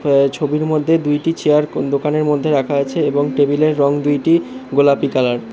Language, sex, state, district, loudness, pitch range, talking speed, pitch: Bengali, male, West Bengal, Alipurduar, -16 LUFS, 140-150 Hz, 195 wpm, 145 Hz